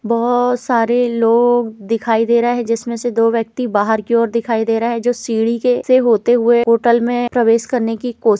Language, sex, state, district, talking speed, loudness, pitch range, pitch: Hindi, female, Chhattisgarh, Rajnandgaon, 220 wpm, -15 LUFS, 230-245 Hz, 235 Hz